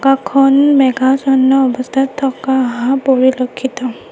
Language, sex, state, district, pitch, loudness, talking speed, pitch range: Assamese, female, Assam, Kamrup Metropolitan, 265 Hz, -13 LUFS, 85 wpm, 255-270 Hz